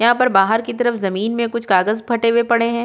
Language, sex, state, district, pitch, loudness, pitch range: Hindi, female, Uttar Pradesh, Budaun, 235 Hz, -17 LUFS, 215-235 Hz